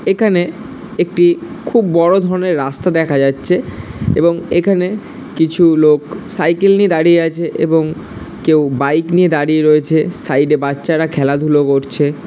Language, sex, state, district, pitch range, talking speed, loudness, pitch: Bengali, male, West Bengal, Malda, 145-180 Hz, 125 wpm, -13 LUFS, 160 Hz